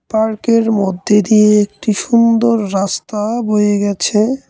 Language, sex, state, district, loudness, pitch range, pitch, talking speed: Bengali, male, West Bengal, Cooch Behar, -14 LUFS, 205-230 Hz, 210 Hz, 105 wpm